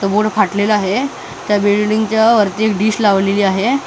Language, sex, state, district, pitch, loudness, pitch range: Marathi, male, Maharashtra, Mumbai Suburban, 210 Hz, -14 LUFS, 200-220 Hz